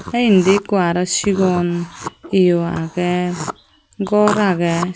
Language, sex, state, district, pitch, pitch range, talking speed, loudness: Chakma, female, Tripura, Unakoti, 180 Hz, 175-195 Hz, 110 wpm, -17 LUFS